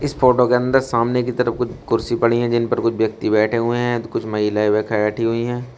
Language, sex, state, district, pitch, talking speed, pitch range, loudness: Hindi, male, Uttar Pradesh, Shamli, 115 Hz, 260 wpm, 110-125 Hz, -19 LUFS